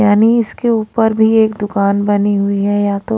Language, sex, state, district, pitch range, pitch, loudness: Hindi, female, Haryana, Rohtak, 205-220 Hz, 205 Hz, -14 LUFS